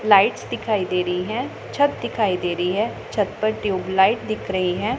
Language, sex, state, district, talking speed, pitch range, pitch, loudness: Hindi, female, Punjab, Pathankot, 190 wpm, 185-215 Hz, 200 Hz, -22 LUFS